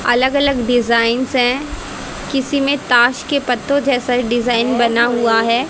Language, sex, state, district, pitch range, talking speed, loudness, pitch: Hindi, female, Haryana, Jhajjar, 240-270 Hz, 145 wpm, -15 LUFS, 245 Hz